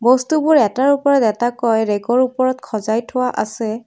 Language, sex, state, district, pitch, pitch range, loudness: Assamese, female, Assam, Kamrup Metropolitan, 250 Hz, 220-260 Hz, -17 LUFS